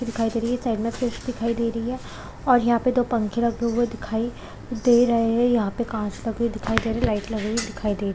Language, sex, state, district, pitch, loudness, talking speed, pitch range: Hindi, female, Chhattisgarh, Balrampur, 230 Hz, -23 LUFS, 245 wpm, 225-240 Hz